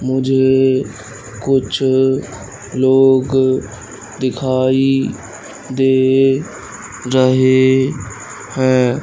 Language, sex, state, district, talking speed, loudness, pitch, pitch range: Hindi, male, Madhya Pradesh, Katni, 45 wpm, -14 LUFS, 130 Hz, 130-135 Hz